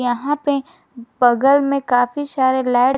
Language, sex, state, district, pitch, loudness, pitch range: Hindi, female, Jharkhand, Garhwa, 265 Hz, -17 LUFS, 245-285 Hz